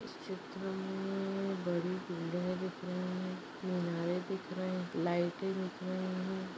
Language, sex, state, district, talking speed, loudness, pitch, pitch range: Hindi, female, Maharashtra, Chandrapur, 135 wpm, -38 LUFS, 185 Hz, 180-190 Hz